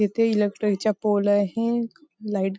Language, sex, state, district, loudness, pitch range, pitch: Marathi, female, Maharashtra, Nagpur, -23 LUFS, 205-225 Hz, 210 Hz